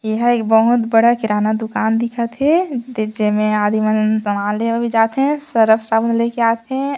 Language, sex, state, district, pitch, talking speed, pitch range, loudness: Chhattisgarhi, female, Chhattisgarh, Sarguja, 225 Hz, 170 wpm, 215-240 Hz, -16 LUFS